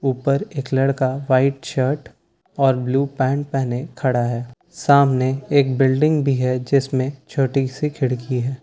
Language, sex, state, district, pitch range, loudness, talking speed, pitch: Hindi, male, Bihar, Katihar, 130-140 Hz, -20 LUFS, 145 wpm, 135 Hz